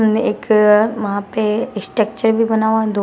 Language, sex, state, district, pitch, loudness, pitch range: Hindi, female, Bihar, Katihar, 220 Hz, -16 LUFS, 210-220 Hz